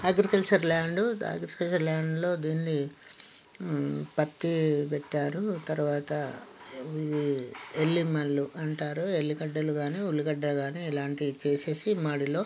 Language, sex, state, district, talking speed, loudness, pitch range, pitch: Telugu, male, Telangana, Nalgonda, 105 wpm, -30 LUFS, 145-165 Hz, 155 Hz